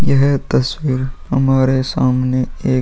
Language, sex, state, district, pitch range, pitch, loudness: Hindi, male, Bihar, Vaishali, 130-135 Hz, 130 Hz, -16 LUFS